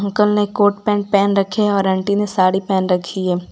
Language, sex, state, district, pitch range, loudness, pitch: Hindi, female, Gujarat, Valsad, 190-205 Hz, -17 LUFS, 200 Hz